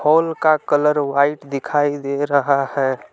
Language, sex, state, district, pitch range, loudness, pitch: Hindi, male, Jharkhand, Palamu, 140-150 Hz, -18 LUFS, 145 Hz